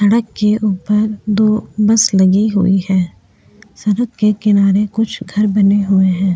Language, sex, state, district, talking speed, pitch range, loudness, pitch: Hindi, female, Uttar Pradesh, Jyotiba Phule Nagar, 150 wpm, 195-215 Hz, -14 LUFS, 210 Hz